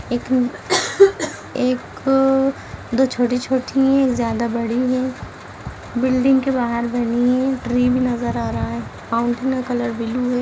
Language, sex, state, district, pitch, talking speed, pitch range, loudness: Hindi, female, Bihar, Vaishali, 250 Hz, 145 wpm, 240-265 Hz, -19 LUFS